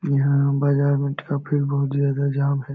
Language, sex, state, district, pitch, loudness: Hindi, male, Bihar, Jamui, 140 Hz, -21 LUFS